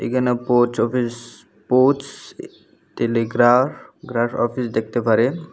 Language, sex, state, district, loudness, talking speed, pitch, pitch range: Bengali, male, Tripura, Unakoti, -19 LUFS, 100 wpm, 120 Hz, 115-125 Hz